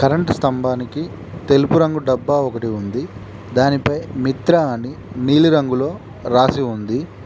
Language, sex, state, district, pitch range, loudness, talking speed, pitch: Telugu, male, Telangana, Mahabubabad, 120-145 Hz, -18 LUFS, 105 wpm, 130 Hz